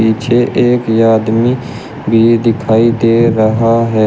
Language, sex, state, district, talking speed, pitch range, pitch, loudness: Hindi, male, Uttar Pradesh, Shamli, 120 wpm, 110-120 Hz, 115 Hz, -11 LUFS